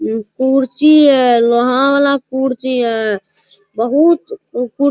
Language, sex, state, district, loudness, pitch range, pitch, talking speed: Hindi, male, Bihar, Araria, -13 LUFS, 230-280 Hz, 255 Hz, 120 wpm